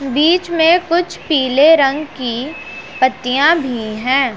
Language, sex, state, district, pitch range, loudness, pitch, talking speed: Hindi, female, Punjab, Pathankot, 255-320 Hz, -14 LUFS, 275 Hz, 125 wpm